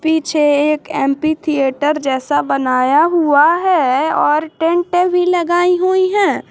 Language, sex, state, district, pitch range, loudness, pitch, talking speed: Hindi, female, Jharkhand, Garhwa, 290-350 Hz, -14 LUFS, 315 Hz, 130 wpm